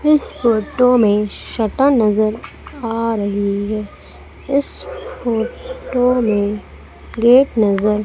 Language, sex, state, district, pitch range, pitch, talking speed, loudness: Hindi, female, Madhya Pradesh, Umaria, 210-265 Hz, 230 Hz, 105 wpm, -17 LUFS